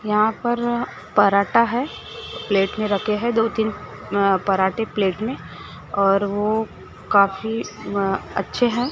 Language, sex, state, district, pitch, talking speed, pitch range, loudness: Hindi, female, Maharashtra, Gondia, 210 Hz, 135 wpm, 200-225 Hz, -21 LUFS